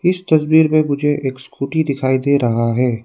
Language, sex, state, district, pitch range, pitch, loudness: Hindi, male, Arunachal Pradesh, Lower Dibang Valley, 130-155 Hz, 140 Hz, -16 LUFS